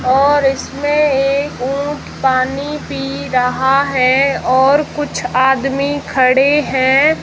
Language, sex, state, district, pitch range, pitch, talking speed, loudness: Hindi, female, Rajasthan, Jaisalmer, 255-285 Hz, 270 Hz, 110 wpm, -14 LUFS